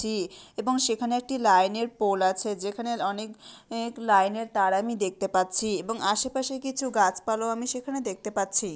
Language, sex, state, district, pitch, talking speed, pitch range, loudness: Bengali, female, West Bengal, Malda, 220 Hz, 160 wpm, 195-235 Hz, -27 LUFS